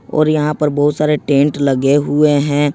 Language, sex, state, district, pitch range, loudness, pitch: Hindi, male, Jharkhand, Ranchi, 145-150 Hz, -14 LUFS, 145 Hz